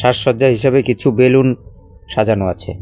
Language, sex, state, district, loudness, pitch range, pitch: Bengali, male, West Bengal, Cooch Behar, -14 LUFS, 100-130 Hz, 125 Hz